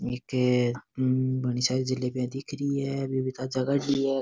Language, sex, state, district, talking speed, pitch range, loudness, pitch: Rajasthani, male, Rajasthan, Nagaur, 185 wpm, 125-135 Hz, -28 LUFS, 130 Hz